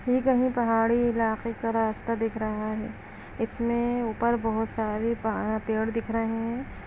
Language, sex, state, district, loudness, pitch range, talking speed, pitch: Hindi, female, Chhattisgarh, Balrampur, -27 LUFS, 220-235 Hz, 150 wpm, 225 Hz